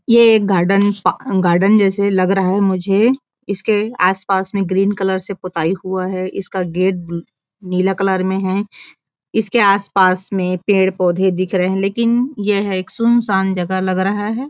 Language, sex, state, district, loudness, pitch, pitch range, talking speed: Hindi, female, Chhattisgarh, Raigarh, -16 LUFS, 195 Hz, 185-205 Hz, 170 wpm